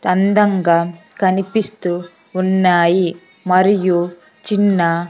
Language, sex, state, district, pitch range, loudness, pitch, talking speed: Telugu, female, Andhra Pradesh, Sri Satya Sai, 175-195 Hz, -16 LUFS, 185 Hz, 60 wpm